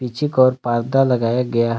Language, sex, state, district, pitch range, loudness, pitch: Hindi, male, Jharkhand, Palamu, 115-130 Hz, -18 LUFS, 125 Hz